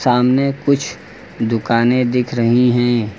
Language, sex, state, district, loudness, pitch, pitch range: Hindi, male, Uttar Pradesh, Lucknow, -16 LUFS, 120 Hz, 115-125 Hz